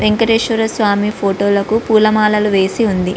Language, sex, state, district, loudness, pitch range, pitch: Telugu, female, Andhra Pradesh, Visakhapatnam, -14 LUFS, 200-225 Hz, 210 Hz